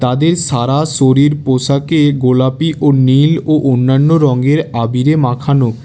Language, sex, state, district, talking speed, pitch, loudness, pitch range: Bengali, male, West Bengal, Alipurduar, 125 wpm, 140 Hz, -12 LUFS, 130-150 Hz